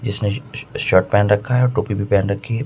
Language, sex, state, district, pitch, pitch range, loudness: Hindi, male, Jharkhand, Ranchi, 105 Hz, 100-125 Hz, -18 LUFS